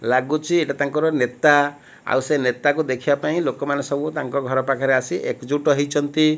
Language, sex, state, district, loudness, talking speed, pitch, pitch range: Odia, male, Odisha, Malkangiri, -20 LUFS, 170 wpm, 145 Hz, 130-150 Hz